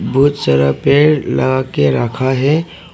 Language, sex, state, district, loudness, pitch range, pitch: Hindi, male, Arunachal Pradesh, Papum Pare, -14 LUFS, 120-145 Hz, 130 Hz